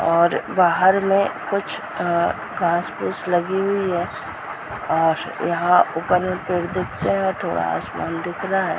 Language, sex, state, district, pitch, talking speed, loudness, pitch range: Hindi, female, Bihar, Muzaffarpur, 180 Hz, 170 wpm, -21 LUFS, 170-190 Hz